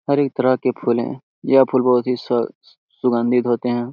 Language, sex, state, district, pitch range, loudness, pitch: Hindi, male, Bihar, Lakhisarai, 120-130 Hz, -19 LUFS, 125 Hz